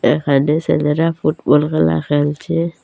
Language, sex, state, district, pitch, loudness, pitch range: Bengali, female, Assam, Hailakandi, 150 Hz, -16 LUFS, 145-160 Hz